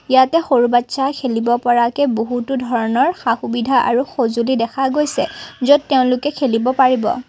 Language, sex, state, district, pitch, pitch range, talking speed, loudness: Assamese, female, Assam, Kamrup Metropolitan, 255 Hz, 240-270 Hz, 130 wpm, -16 LUFS